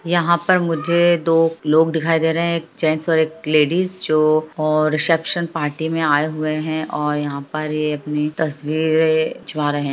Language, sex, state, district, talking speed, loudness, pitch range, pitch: Hindi, male, Bihar, Madhepura, 185 wpm, -18 LUFS, 155-165 Hz, 155 Hz